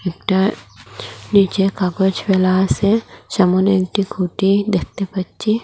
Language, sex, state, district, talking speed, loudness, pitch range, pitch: Bengali, female, Assam, Hailakandi, 105 wpm, -17 LUFS, 185-200 Hz, 195 Hz